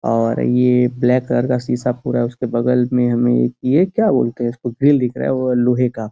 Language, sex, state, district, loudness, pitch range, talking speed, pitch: Hindi, male, Uttar Pradesh, Gorakhpur, -17 LUFS, 120-125 Hz, 225 wpm, 125 Hz